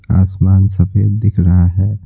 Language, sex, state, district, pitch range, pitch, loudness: Hindi, male, Bihar, Patna, 90-105 Hz, 95 Hz, -13 LUFS